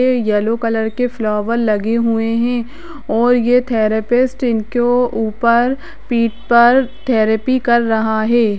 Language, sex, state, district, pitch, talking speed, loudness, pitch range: Hindi, female, Bihar, Jahanabad, 235 Hz, 125 wpm, -15 LUFS, 220-245 Hz